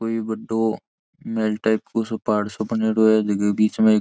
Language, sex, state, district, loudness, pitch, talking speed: Marwari, male, Rajasthan, Churu, -21 LUFS, 110 Hz, 210 wpm